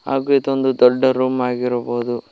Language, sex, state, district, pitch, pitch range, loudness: Kannada, male, Karnataka, Koppal, 130 Hz, 125-135 Hz, -18 LUFS